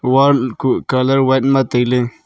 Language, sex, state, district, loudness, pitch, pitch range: Wancho, male, Arunachal Pradesh, Longding, -15 LUFS, 130 Hz, 125-135 Hz